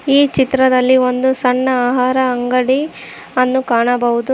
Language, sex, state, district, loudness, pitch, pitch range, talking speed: Kannada, female, Karnataka, Koppal, -14 LUFS, 255 Hz, 250-260 Hz, 110 wpm